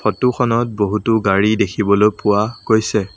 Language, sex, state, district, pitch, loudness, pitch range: Assamese, male, Assam, Sonitpur, 105 Hz, -16 LUFS, 105-115 Hz